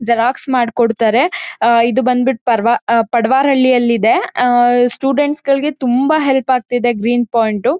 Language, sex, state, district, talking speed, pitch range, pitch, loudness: Kannada, female, Karnataka, Mysore, 140 wpm, 235-260 Hz, 245 Hz, -14 LUFS